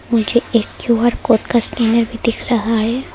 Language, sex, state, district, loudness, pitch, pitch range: Hindi, female, Arunachal Pradesh, Lower Dibang Valley, -16 LUFS, 230 Hz, 230-235 Hz